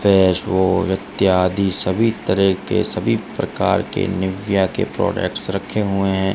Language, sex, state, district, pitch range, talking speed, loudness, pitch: Hindi, male, Rajasthan, Bikaner, 95-100 Hz, 130 wpm, -18 LUFS, 95 Hz